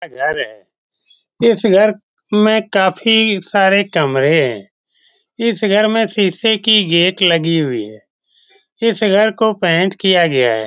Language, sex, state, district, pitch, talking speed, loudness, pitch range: Hindi, male, Bihar, Saran, 205 Hz, 140 wpm, -14 LUFS, 180-220 Hz